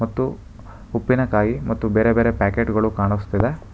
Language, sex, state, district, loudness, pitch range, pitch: Kannada, male, Karnataka, Bangalore, -20 LUFS, 105-115 Hz, 110 Hz